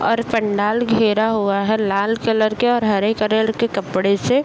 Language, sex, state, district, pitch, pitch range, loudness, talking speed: Hindi, male, Bihar, Bhagalpur, 220 Hz, 205-230 Hz, -18 LUFS, 190 wpm